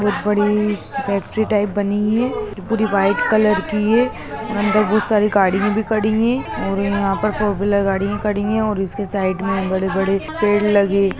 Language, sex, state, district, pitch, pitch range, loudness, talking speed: Hindi, female, Bihar, Muzaffarpur, 205 Hz, 200-215 Hz, -18 LUFS, 180 wpm